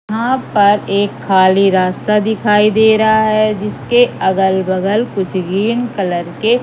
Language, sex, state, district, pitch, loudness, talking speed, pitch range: Hindi, female, Madhya Pradesh, Katni, 210 Hz, -13 LUFS, 145 wpm, 190-220 Hz